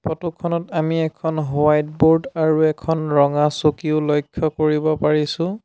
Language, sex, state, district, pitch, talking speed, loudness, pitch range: Assamese, male, Assam, Sonitpur, 155 Hz, 140 wpm, -19 LUFS, 150-160 Hz